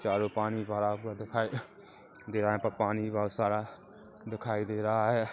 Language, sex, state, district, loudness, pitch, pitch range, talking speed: Hindi, male, Chhattisgarh, Kabirdham, -32 LUFS, 110 Hz, 105-110 Hz, 170 wpm